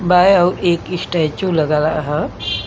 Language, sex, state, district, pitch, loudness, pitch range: Bhojpuri, female, Uttar Pradesh, Gorakhpur, 165 Hz, -16 LUFS, 150-180 Hz